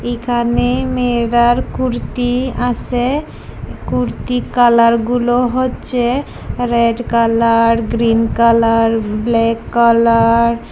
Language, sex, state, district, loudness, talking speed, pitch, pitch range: Bengali, female, Tripura, West Tripura, -14 LUFS, 80 wpm, 235 Hz, 230-245 Hz